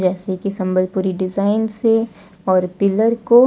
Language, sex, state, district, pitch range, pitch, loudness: Hindi, female, Odisha, Sambalpur, 185-220 Hz, 200 Hz, -18 LUFS